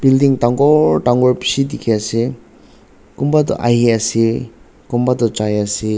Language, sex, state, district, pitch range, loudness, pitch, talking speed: Nagamese, male, Nagaland, Dimapur, 115-135 Hz, -15 LUFS, 120 Hz, 110 wpm